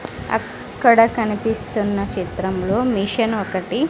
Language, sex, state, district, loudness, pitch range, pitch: Telugu, female, Andhra Pradesh, Sri Satya Sai, -20 LUFS, 200-230 Hz, 215 Hz